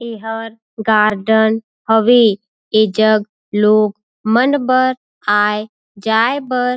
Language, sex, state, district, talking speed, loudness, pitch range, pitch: Surgujia, female, Chhattisgarh, Sarguja, 105 wpm, -15 LUFS, 210-235 Hz, 220 Hz